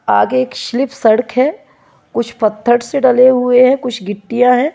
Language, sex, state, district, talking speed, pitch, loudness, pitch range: Hindi, female, Bihar, Kishanganj, 175 wpm, 245 Hz, -13 LUFS, 220-255 Hz